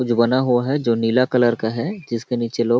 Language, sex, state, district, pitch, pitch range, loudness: Hindi, male, Chhattisgarh, Balrampur, 120 Hz, 115-125 Hz, -19 LUFS